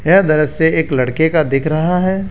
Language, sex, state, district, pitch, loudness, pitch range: Hindi, male, Rajasthan, Jaipur, 160 Hz, -14 LUFS, 155-180 Hz